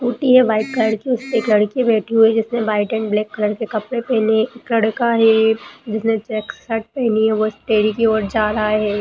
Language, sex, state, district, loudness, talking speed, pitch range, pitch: Hindi, female, Bihar, Jamui, -17 LUFS, 240 wpm, 215-230 Hz, 220 Hz